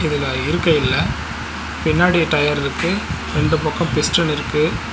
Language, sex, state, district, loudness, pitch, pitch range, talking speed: Tamil, male, Tamil Nadu, Nilgiris, -18 LUFS, 150 Hz, 140-160 Hz, 120 wpm